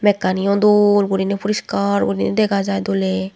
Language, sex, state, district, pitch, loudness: Chakma, female, Tripura, West Tripura, 195 Hz, -17 LUFS